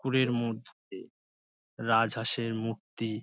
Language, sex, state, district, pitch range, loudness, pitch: Bengali, male, West Bengal, Dakshin Dinajpur, 110-115 Hz, -30 LUFS, 115 Hz